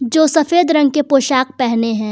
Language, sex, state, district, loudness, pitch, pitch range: Hindi, female, Jharkhand, Garhwa, -14 LUFS, 280 Hz, 250-315 Hz